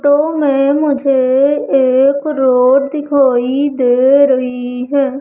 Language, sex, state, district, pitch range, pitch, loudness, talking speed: Hindi, female, Madhya Pradesh, Umaria, 255-285 Hz, 275 Hz, -12 LUFS, 105 wpm